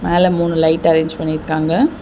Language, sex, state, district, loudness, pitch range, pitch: Tamil, female, Tamil Nadu, Chennai, -15 LUFS, 160-175 Hz, 165 Hz